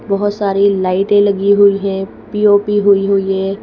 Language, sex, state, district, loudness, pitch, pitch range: Hindi, female, Madhya Pradesh, Bhopal, -13 LUFS, 200 Hz, 195-205 Hz